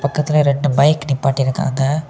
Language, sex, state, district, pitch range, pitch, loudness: Tamil, male, Tamil Nadu, Kanyakumari, 135-150 Hz, 140 Hz, -16 LUFS